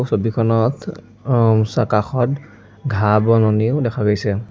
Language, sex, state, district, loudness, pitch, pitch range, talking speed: Assamese, male, Assam, Sonitpur, -17 LUFS, 115 Hz, 105-125 Hz, 80 wpm